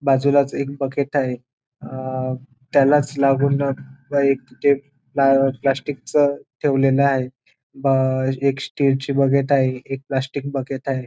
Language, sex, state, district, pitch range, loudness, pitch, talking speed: Marathi, male, Maharashtra, Dhule, 130-140 Hz, -20 LUFS, 135 Hz, 135 wpm